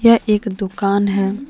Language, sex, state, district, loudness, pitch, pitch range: Hindi, female, Jharkhand, Deoghar, -17 LUFS, 200 Hz, 195-215 Hz